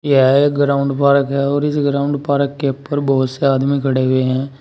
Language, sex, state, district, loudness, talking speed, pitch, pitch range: Hindi, male, Uttar Pradesh, Saharanpur, -16 LUFS, 220 wpm, 140 Hz, 135-140 Hz